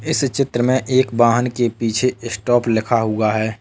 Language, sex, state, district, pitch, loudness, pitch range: Hindi, male, Uttar Pradesh, Lalitpur, 120 Hz, -18 LUFS, 115-125 Hz